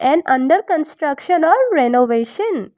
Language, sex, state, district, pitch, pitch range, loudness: English, female, Arunachal Pradesh, Lower Dibang Valley, 310 Hz, 255-355 Hz, -16 LUFS